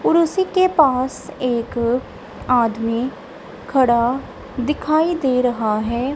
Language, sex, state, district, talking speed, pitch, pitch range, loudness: Hindi, female, Punjab, Kapurthala, 95 wpm, 255 Hz, 235-295 Hz, -19 LUFS